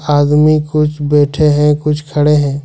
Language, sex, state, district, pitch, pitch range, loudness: Hindi, male, Jharkhand, Ranchi, 150 Hz, 145-150 Hz, -12 LUFS